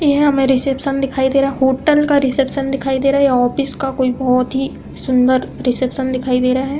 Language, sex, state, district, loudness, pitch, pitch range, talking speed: Hindi, female, Uttar Pradesh, Hamirpur, -16 LUFS, 270 Hz, 255-275 Hz, 230 wpm